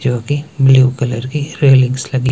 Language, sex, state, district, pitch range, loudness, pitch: Hindi, male, Himachal Pradesh, Shimla, 130-145 Hz, -13 LUFS, 130 Hz